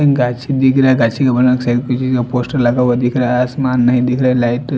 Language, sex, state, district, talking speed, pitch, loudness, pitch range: Hindi, male, Chandigarh, Chandigarh, 140 wpm, 125 Hz, -14 LUFS, 125-130 Hz